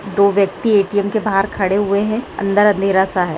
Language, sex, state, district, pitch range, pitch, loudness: Hindi, female, Bihar, Jahanabad, 195-205 Hz, 200 Hz, -16 LUFS